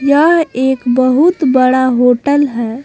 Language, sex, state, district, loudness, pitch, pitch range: Hindi, female, Jharkhand, Palamu, -11 LUFS, 260 Hz, 250-290 Hz